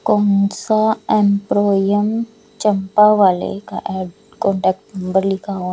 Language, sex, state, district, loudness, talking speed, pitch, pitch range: Hindi, female, Chhattisgarh, Raipur, -17 LUFS, 75 wpm, 200 Hz, 190-210 Hz